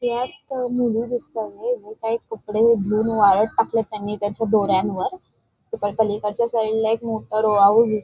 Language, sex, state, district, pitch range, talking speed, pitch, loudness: Marathi, female, Maharashtra, Dhule, 210-235 Hz, 135 wpm, 225 Hz, -21 LUFS